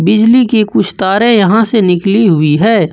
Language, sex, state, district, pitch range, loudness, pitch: Hindi, male, Jharkhand, Ranchi, 190-225 Hz, -9 LUFS, 210 Hz